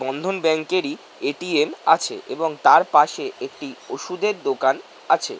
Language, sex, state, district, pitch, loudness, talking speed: Bengali, male, West Bengal, North 24 Parganas, 205 Hz, -21 LUFS, 135 wpm